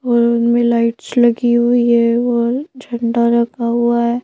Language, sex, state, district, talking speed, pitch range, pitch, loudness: Hindi, female, Madhya Pradesh, Bhopal, 155 wpm, 235-240 Hz, 235 Hz, -15 LUFS